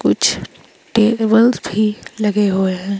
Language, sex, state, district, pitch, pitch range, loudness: Hindi, female, Himachal Pradesh, Shimla, 210 Hz, 200-220 Hz, -16 LUFS